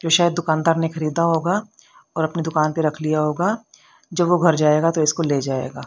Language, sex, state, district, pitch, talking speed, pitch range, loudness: Hindi, female, Haryana, Rohtak, 160 Hz, 215 wpm, 155-170 Hz, -20 LUFS